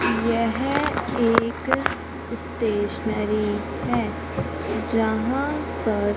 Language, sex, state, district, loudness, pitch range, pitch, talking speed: Hindi, female, Madhya Pradesh, Umaria, -24 LUFS, 215-240 Hz, 225 Hz, 60 wpm